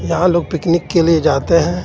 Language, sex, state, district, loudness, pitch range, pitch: Hindi, male, Jharkhand, Ranchi, -15 LUFS, 160-170 Hz, 165 Hz